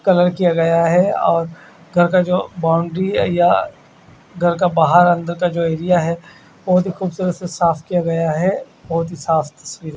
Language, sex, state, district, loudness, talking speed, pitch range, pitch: Hindi, male, Odisha, Khordha, -17 LUFS, 180 wpm, 165-180 Hz, 170 Hz